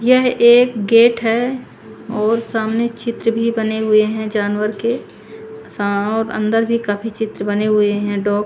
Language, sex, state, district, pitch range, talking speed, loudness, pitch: Hindi, female, Haryana, Charkhi Dadri, 210-230 Hz, 170 wpm, -17 LUFS, 220 Hz